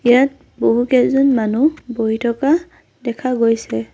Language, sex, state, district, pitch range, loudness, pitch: Assamese, female, Assam, Sonitpur, 230-270 Hz, -17 LUFS, 245 Hz